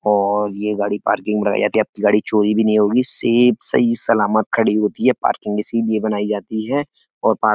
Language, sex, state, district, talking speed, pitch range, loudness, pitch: Hindi, male, Uttar Pradesh, Etah, 220 wpm, 105-115 Hz, -18 LUFS, 105 Hz